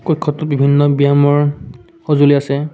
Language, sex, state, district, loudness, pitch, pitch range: Assamese, male, Assam, Kamrup Metropolitan, -13 LUFS, 145 Hz, 140-150 Hz